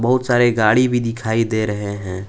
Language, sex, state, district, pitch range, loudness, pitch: Hindi, male, Jharkhand, Palamu, 105-120 Hz, -17 LUFS, 115 Hz